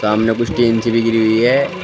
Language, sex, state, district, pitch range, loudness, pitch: Hindi, male, Uttar Pradesh, Shamli, 110-120 Hz, -15 LUFS, 115 Hz